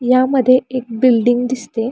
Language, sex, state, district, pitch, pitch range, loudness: Marathi, female, Maharashtra, Pune, 255 Hz, 240-255 Hz, -15 LUFS